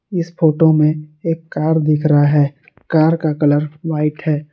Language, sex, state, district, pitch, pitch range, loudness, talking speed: Hindi, male, Jharkhand, Garhwa, 155 Hz, 150-160 Hz, -16 LUFS, 170 wpm